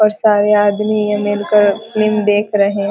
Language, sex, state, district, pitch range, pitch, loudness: Hindi, female, Bihar, Vaishali, 205-215 Hz, 210 Hz, -14 LUFS